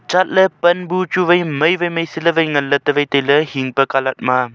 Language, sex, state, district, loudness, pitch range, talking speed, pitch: Wancho, male, Arunachal Pradesh, Longding, -16 LUFS, 140-175 Hz, 250 wpm, 155 Hz